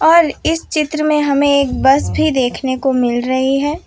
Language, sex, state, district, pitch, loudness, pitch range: Hindi, female, Gujarat, Valsad, 280 Hz, -15 LUFS, 260-305 Hz